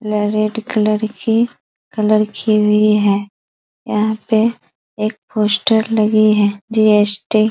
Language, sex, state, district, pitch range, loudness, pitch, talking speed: Hindi, female, Bihar, East Champaran, 210-220 Hz, -15 LUFS, 215 Hz, 135 wpm